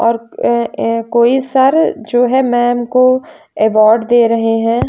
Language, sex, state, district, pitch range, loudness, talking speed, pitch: Hindi, female, Bihar, West Champaran, 230-255 Hz, -12 LUFS, 145 wpm, 240 Hz